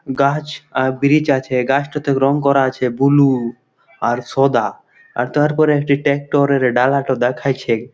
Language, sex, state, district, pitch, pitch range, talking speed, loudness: Bengali, male, West Bengal, Malda, 135 Hz, 130-140 Hz, 135 wpm, -16 LUFS